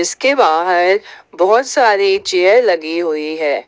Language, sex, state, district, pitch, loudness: Hindi, female, Jharkhand, Ranchi, 180 Hz, -13 LUFS